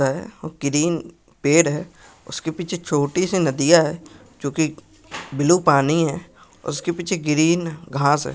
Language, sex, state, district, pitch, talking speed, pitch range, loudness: Hindi, male, Maharashtra, Pune, 160 Hz, 135 wpm, 145-175 Hz, -20 LUFS